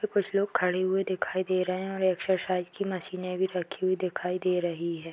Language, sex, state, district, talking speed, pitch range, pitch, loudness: Hindi, female, Bihar, East Champaran, 220 wpm, 180-190 Hz, 185 Hz, -29 LUFS